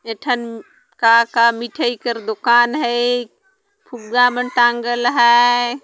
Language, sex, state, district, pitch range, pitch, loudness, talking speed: Sadri, female, Chhattisgarh, Jashpur, 235-245 Hz, 240 Hz, -16 LUFS, 125 wpm